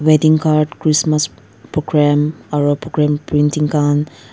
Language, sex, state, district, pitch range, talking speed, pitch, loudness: Nagamese, female, Nagaland, Dimapur, 145-155 Hz, 110 wpm, 150 Hz, -16 LUFS